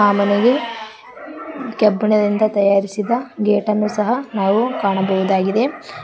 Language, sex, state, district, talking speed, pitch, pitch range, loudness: Kannada, female, Karnataka, Koppal, 80 wpm, 210 Hz, 200-235 Hz, -17 LUFS